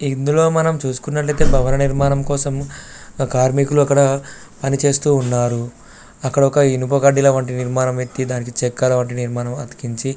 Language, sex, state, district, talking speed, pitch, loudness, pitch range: Telugu, male, Telangana, Karimnagar, 100 wpm, 135 Hz, -17 LUFS, 125-140 Hz